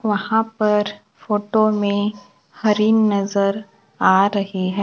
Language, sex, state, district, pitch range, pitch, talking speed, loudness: Hindi, male, Maharashtra, Gondia, 200-215 Hz, 205 Hz, 110 wpm, -19 LUFS